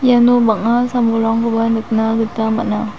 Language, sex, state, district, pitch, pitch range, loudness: Garo, female, Meghalaya, South Garo Hills, 225 Hz, 220-240 Hz, -15 LUFS